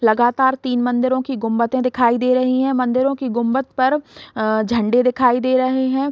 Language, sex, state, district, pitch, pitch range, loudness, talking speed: Hindi, female, Bihar, East Champaran, 255 Hz, 240-260 Hz, -18 LUFS, 185 wpm